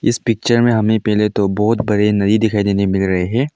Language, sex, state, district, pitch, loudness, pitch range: Hindi, male, Arunachal Pradesh, Longding, 105 Hz, -15 LUFS, 100-115 Hz